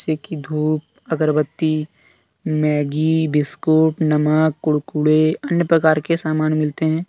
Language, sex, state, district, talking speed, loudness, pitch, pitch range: Hindi, male, Jharkhand, Deoghar, 100 wpm, -18 LUFS, 155 Hz, 150-160 Hz